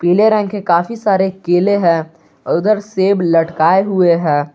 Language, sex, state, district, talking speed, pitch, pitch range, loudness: Hindi, male, Jharkhand, Garhwa, 160 wpm, 185 Hz, 170-200 Hz, -14 LUFS